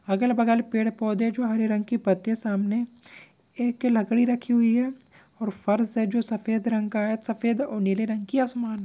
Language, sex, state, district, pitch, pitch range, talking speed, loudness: Hindi, male, Maharashtra, Chandrapur, 225 Hz, 215-240 Hz, 205 wpm, -25 LUFS